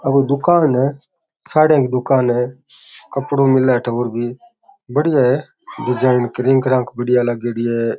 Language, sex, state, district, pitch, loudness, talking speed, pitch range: Rajasthani, male, Rajasthan, Churu, 130 Hz, -17 LUFS, 145 wpm, 120-145 Hz